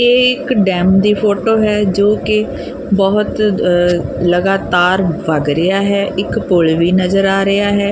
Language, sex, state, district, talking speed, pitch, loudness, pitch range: Punjabi, female, Punjab, Kapurthala, 145 wpm, 195 Hz, -13 LUFS, 180-210 Hz